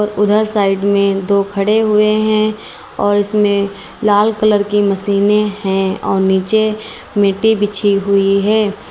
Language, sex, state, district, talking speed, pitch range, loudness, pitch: Hindi, female, Uttar Pradesh, Lalitpur, 135 wpm, 200-215 Hz, -14 LUFS, 205 Hz